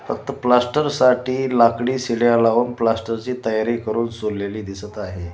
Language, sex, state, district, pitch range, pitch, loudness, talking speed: Marathi, male, Maharashtra, Washim, 110-125 Hz, 115 Hz, -20 LUFS, 145 wpm